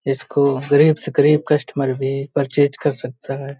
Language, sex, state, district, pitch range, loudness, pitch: Hindi, male, Uttar Pradesh, Hamirpur, 135-145 Hz, -18 LUFS, 140 Hz